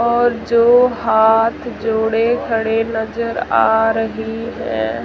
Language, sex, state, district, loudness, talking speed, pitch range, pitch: Hindi, female, Rajasthan, Jaisalmer, -16 LUFS, 105 wpm, 220-235 Hz, 225 Hz